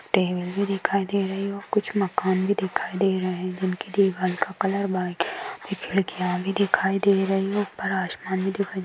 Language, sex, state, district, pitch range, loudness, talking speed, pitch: Hindi, male, Chhattisgarh, Bastar, 185-200 Hz, -25 LUFS, 205 wpm, 195 Hz